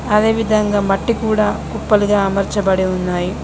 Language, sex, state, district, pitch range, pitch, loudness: Telugu, female, Telangana, Mahabubabad, 195-215 Hz, 205 Hz, -16 LUFS